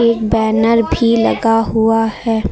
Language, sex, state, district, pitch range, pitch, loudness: Hindi, female, Uttar Pradesh, Lucknow, 220-230 Hz, 225 Hz, -14 LUFS